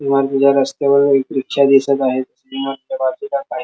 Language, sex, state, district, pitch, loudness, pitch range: Marathi, male, Maharashtra, Sindhudurg, 140 Hz, -16 LUFS, 135-140 Hz